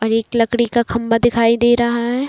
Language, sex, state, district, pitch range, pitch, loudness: Hindi, female, Bihar, Saran, 230-240 Hz, 235 Hz, -16 LUFS